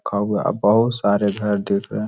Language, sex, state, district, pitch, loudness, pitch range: Hindi, male, Jharkhand, Sahebganj, 105 Hz, -19 LUFS, 100-110 Hz